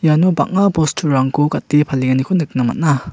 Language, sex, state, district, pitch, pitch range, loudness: Garo, male, Meghalaya, West Garo Hills, 150 Hz, 135-165 Hz, -16 LUFS